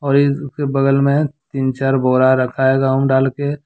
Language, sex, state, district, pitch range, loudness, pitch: Hindi, male, Jharkhand, Deoghar, 130-140 Hz, -16 LUFS, 135 Hz